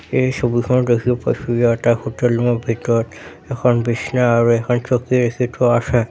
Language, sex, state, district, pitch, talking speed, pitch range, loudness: Assamese, male, Assam, Sonitpur, 120 Hz, 175 wpm, 115-125 Hz, -17 LUFS